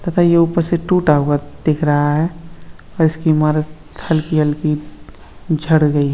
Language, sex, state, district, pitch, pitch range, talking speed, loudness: Hindi, male, Uttar Pradesh, Hamirpur, 155 Hz, 145-165 Hz, 165 wpm, -16 LUFS